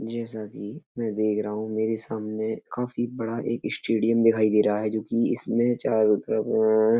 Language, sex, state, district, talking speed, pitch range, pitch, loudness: Hindi, male, Uttar Pradesh, Etah, 195 wpm, 110-115 Hz, 110 Hz, -25 LUFS